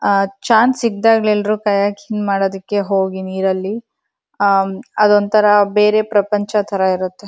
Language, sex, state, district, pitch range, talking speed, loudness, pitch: Kannada, female, Karnataka, Dharwad, 195-215 Hz, 100 wpm, -15 LUFS, 205 Hz